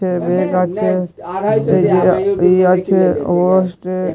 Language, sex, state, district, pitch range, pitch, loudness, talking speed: Bengali, male, West Bengal, Dakshin Dinajpur, 180-185 Hz, 185 Hz, -14 LUFS, 70 wpm